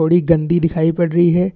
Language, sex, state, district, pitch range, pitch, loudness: Hindi, male, Chhattisgarh, Bastar, 165-175 Hz, 170 Hz, -15 LUFS